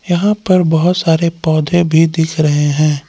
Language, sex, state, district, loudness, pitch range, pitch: Hindi, male, Jharkhand, Palamu, -13 LUFS, 155-175 Hz, 165 Hz